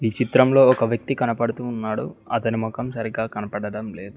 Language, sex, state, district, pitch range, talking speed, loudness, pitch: Telugu, male, Telangana, Mahabubabad, 110-125 Hz, 145 wpm, -22 LUFS, 115 Hz